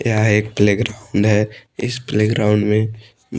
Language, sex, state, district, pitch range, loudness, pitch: Hindi, male, Odisha, Malkangiri, 105-110 Hz, -18 LUFS, 105 Hz